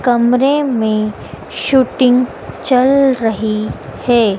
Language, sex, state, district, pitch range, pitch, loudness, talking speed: Hindi, female, Madhya Pradesh, Dhar, 220-260 Hz, 245 Hz, -14 LUFS, 80 wpm